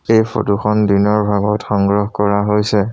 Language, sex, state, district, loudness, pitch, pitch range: Assamese, male, Assam, Sonitpur, -15 LUFS, 105 Hz, 100-105 Hz